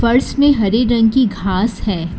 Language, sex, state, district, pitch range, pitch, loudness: Hindi, female, Karnataka, Bangalore, 200-245 Hz, 225 Hz, -15 LUFS